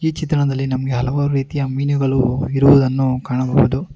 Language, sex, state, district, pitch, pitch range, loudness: Kannada, male, Karnataka, Bangalore, 135 Hz, 130-140 Hz, -17 LUFS